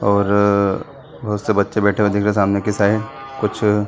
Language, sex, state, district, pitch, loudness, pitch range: Hindi, male, Chhattisgarh, Sarguja, 105 Hz, -18 LUFS, 100-105 Hz